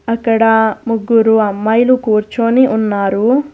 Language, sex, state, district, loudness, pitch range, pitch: Telugu, female, Telangana, Hyderabad, -13 LUFS, 215-235 Hz, 225 Hz